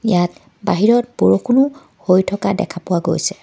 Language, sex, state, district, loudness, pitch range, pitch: Assamese, female, Assam, Kamrup Metropolitan, -17 LUFS, 175-220 Hz, 195 Hz